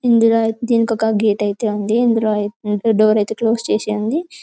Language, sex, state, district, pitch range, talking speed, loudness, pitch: Telugu, female, Telangana, Karimnagar, 215-230 Hz, 160 wpm, -17 LUFS, 220 Hz